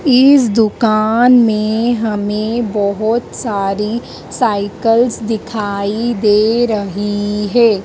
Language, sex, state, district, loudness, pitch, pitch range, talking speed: Hindi, female, Madhya Pradesh, Dhar, -14 LUFS, 220 Hz, 205-235 Hz, 85 wpm